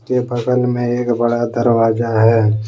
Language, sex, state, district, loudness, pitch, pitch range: Hindi, male, Jharkhand, Deoghar, -16 LUFS, 120 Hz, 115-120 Hz